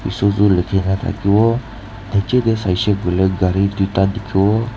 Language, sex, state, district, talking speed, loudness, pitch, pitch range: Nagamese, male, Nagaland, Dimapur, 175 wpm, -17 LUFS, 100 Hz, 95-110 Hz